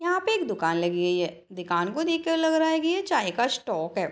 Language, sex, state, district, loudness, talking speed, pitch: Hindi, female, Bihar, Madhepura, -25 LUFS, 275 wpm, 240 Hz